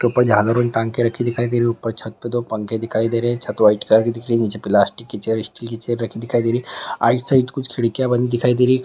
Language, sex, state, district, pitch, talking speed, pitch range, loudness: Hindi, male, Bihar, Madhepura, 115 Hz, 320 wpm, 115-120 Hz, -19 LUFS